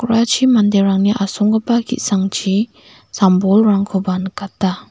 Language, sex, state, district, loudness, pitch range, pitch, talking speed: Garo, female, Meghalaya, West Garo Hills, -15 LUFS, 195-220 Hz, 200 Hz, 85 wpm